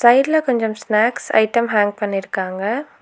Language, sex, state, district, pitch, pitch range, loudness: Tamil, female, Tamil Nadu, Nilgiris, 220 Hz, 205-240 Hz, -18 LUFS